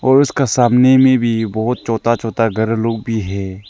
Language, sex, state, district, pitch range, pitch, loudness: Hindi, male, Arunachal Pradesh, Lower Dibang Valley, 110-125 Hz, 115 Hz, -15 LUFS